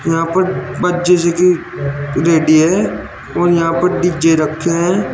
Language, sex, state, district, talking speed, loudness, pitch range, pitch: Hindi, male, Uttar Pradesh, Shamli, 80 wpm, -14 LUFS, 160-180 Hz, 170 Hz